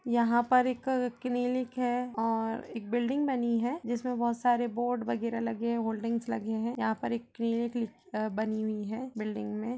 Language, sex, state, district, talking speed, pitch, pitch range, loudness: Hindi, female, Uttar Pradesh, Budaun, 190 wpm, 235 Hz, 225-245 Hz, -31 LUFS